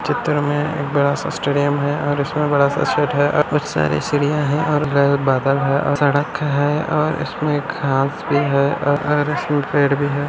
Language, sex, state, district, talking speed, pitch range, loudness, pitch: Hindi, male, Andhra Pradesh, Anantapur, 165 wpm, 140-150 Hz, -18 LUFS, 145 Hz